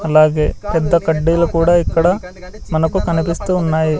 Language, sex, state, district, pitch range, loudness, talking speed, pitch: Telugu, male, Andhra Pradesh, Sri Satya Sai, 160-175 Hz, -15 LUFS, 105 wpm, 165 Hz